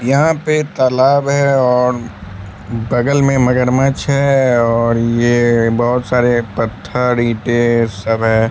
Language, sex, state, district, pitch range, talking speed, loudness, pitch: Hindi, male, Bihar, Katihar, 115-135 Hz, 120 wpm, -14 LUFS, 120 Hz